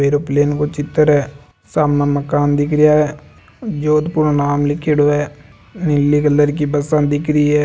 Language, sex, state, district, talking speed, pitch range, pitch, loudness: Marwari, male, Rajasthan, Nagaur, 150 wpm, 145-150 Hz, 145 Hz, -15 LUFS